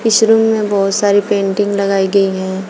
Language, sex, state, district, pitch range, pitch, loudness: Hindi, female, Uttar Pradesh, Shamli, 195-210 Hz, 200 Hz, -13 LUFS